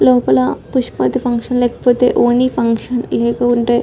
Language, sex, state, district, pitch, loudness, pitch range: Telugu, female, Telangana, Karimnagar, 240 Hz, -15 LUFS, 230-245 Hz